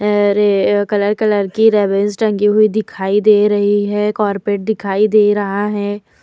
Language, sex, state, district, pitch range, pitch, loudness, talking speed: Hindi, female, Uttar Pradesh, Hamirpur, 205-210 Hz, 205 Hz, -14 LUFS, 165 wpm